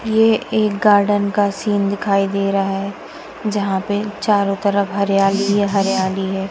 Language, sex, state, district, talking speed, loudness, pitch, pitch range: Hindi, female, Punjab, Kapurthala, 155 wpm, -17 LUFS, 200 Hz, 195-205 Hz